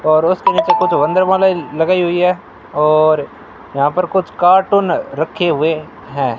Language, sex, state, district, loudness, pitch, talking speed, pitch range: Hindi, male, Rajasthan, Bikaner, -14 LUFS, 180 Hz, 140 wpm, 155-190 Hz